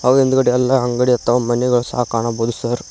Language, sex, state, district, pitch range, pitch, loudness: Kannada, male, Karnataka, Koppal, 120-125 Hz, 125 Hz, -17 LUFS